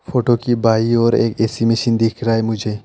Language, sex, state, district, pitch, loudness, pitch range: Hindi, male, West Bengal, Alipurduar, 115 Hz, -16 LUFS, 110-120 Hz